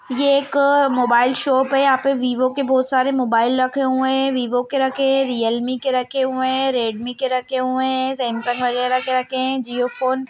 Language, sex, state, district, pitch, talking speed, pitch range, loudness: Hindi, female, Bihar, Lakhisarai, 260 Hz, 225 wpm, 250-265 Hz, -19 LUFS